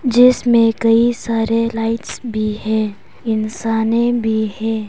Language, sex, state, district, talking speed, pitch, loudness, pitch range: Hindi, female, Arunachal Pradesh, Papum Pare, 110 wpm, 225 Hz, -17 LUFS, 220-230 Hz